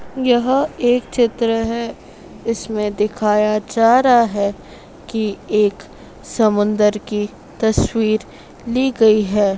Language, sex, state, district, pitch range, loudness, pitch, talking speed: Hindi, female, Madhya Pradesh, Dhar, 210-235 Hz, -17 LUFS, 220 Hz, 105 wpm